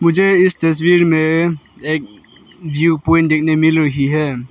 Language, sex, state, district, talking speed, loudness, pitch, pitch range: Hindi, male, Arunachal Pradesh, Lower Dibang Valley, 145 wpm, -14 LUFS, 160 Hz, 155-170 Hz